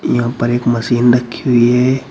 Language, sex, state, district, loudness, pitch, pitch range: Hindi, male, Uttar Pradesh, Shamli, -14 LUFS, 120 Hz, 120-125 Hz